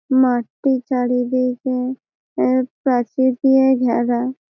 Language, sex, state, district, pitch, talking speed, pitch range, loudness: Bengali, female, West Bengal, Malda, 255 Hz, 80 wpm, 245-260 Hz, -18 LUFS